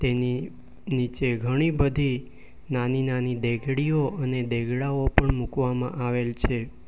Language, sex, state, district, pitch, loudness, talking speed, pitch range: Gujarati, male, Gujarat, Valsad, 125 Hz, -26 LUFS, 105 wpm, 125-135 Hz